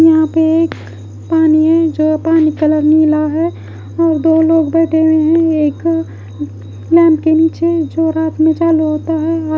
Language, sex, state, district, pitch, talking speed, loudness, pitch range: Hindi, female, Odisha, Khordha, 315 Hz, 175 wpm, -12 LUFS, 305-325 Hz